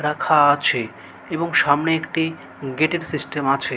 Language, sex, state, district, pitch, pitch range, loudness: Bengali, male, West Bengal, Malda, 150 Hz, 140-160 Hz, -20 LUFS